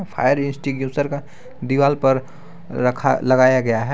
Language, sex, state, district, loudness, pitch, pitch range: Hindi, male, Jharkhand, Garhwa, -19 LUFS, 140 Hz, 130-145 Hz